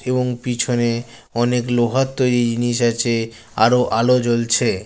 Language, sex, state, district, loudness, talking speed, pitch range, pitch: Bengali, male, West Bengal, Jalpaiguri, -18 LUFS, 125 wpm, 115-125 Hz, 120 Hz